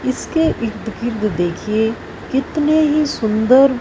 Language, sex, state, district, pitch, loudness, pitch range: Hindi, female, Punjab, Fazilka, 240 Hz, -17 LUFS, 220-275 Hz